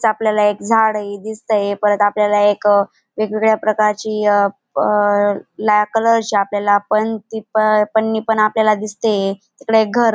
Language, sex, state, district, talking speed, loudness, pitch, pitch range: Marathi, female, Maharashtra, Dhule, 110 wpm, -16 LUFS, 215 Hz, 205-220 Hz